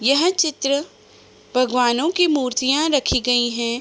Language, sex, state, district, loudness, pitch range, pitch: Hindi, female, Uttar Pradesh, Budaun, -19 LUFS, 245-310 Hz, 270 Hz